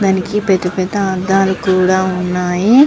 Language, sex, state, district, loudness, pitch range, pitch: Telugu, male, Andhra Pradesh, Visakhapatnam, -15 LUFS, 185-195 Hz, 190 Hz